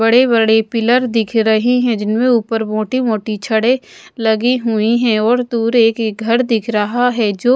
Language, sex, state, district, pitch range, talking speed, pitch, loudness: Hindi, female, Odisha, Malkangiri, 220-245 Hz, 175 wpm, 230 Hz, -15 LUFS